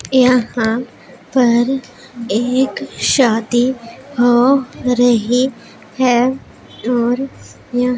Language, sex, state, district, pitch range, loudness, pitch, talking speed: Hindi, female, Punjab, Pathankot, 240-255 Hz, -15 LUFS, 245 Hz, 70 wpm